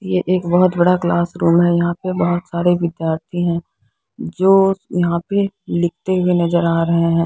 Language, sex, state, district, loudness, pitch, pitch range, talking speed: Hindi, female, Bihar, Patna, -17 LUFS, 175 Hz, 170-180 Hz, 175 wpm